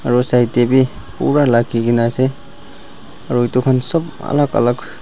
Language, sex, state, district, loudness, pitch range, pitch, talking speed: Nagamese, male, Nagaland, Dimapur, -16 LUFS, 120-140 Hz, 125 Hz, 165 wpm